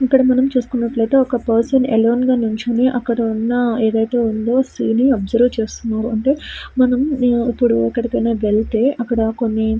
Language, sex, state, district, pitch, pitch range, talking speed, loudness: Telugu, female, Andhra Pradesh, Srikakulam, 235 Hz, 225-255 Hz, 145 wpm, -17 LUFS